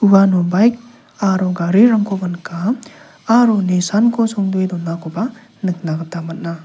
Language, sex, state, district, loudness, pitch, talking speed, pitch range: Garo, male, Meghalaya, South Garo Hills, -16 LUFS, 195 Hz, 110 wpm, 175-225 Hz